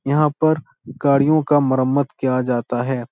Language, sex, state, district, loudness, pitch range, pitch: Hindi, male, Bihar, Supaul, -18 LUFS, 130-150 Hz, 140 Hz